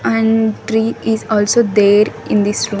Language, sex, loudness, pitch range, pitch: English, female, -14 LUFS, 210-225 Hz, 220 Hz